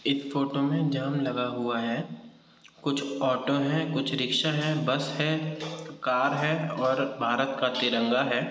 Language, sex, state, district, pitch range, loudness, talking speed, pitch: Hindi, male, Uttar Pradesh, Jyotiba Phule Nagar, 130-150 Hz, -27 LUFS, 160 wpm, 140 Hz